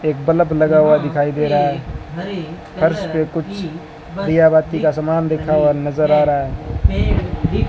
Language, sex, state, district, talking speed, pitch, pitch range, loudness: Hindi, male, Rajasthan, Bikaner, 165 wpm, 155 Hz, 145-160 Hz, -17 LUFS